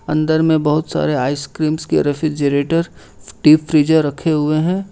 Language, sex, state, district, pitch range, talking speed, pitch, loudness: Hindi, male, Jharkhand, Ranchi, 150-160 Hz, 145 wpm, 155 Hz, -16 LUFS